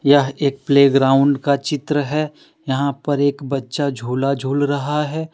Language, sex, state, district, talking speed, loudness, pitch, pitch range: Hindi, male, Jharkhand, Deoghar, 155 wpm, -18 LUFS, 140 Hz, 135-145 Hz